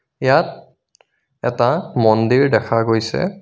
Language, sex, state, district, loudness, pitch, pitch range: Assamese, male, Assam, Kamrup Metropolitan, -17 LUFS, 120 Hz, 115-140 Hz